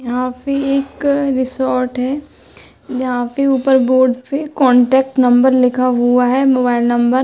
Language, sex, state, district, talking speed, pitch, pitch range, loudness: Hindi, female, Uttar Pradesh, Hamirpur, 155 wpm, 255 Hz, 250-270 Hz, -14 LUFS